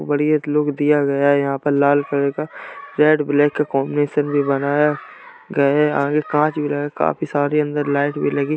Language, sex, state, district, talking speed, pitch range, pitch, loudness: Hindi, male, Uttar Pradesh, Jalaun, 205 wpm, 140-150 Hz, 145 Hz, -18 LUFS